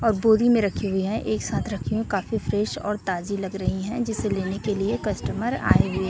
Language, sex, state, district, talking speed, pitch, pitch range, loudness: Hindi, female, Chhattisgarh, Raipur, 225 wpm, 200 Hz, 190-220 Hz, -24 LUFS